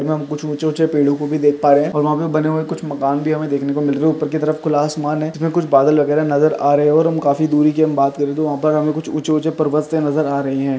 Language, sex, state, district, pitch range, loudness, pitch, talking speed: Hindi, male, Uttar Pradesh, Jyotiba Phule Nagar, 145-155 Hz, -17 LUFS, 150 Hz, 310 wpm